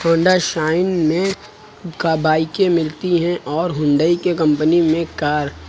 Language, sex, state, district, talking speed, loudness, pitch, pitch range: Hindi, male, Uttar Pradesh, Lucknow, 150 wpm, -17 LUFS, 165 Hz, 155-180 Hz